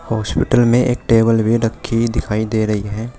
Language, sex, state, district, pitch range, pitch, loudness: Hindi, male, Uttar Pradesh, Shamli, 110-115 Hz, 115 Hz, -16 LUFS